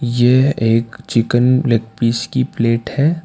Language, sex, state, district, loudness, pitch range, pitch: Hindi, male, Karnataka, Bangalore, -16 LUFS, 115-130 Hz, 120 Hz